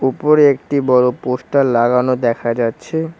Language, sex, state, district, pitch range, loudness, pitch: Bengali, male, West Bengal, Cooch Behar, 120-140 Hz, -15 LUFS, 125 Hz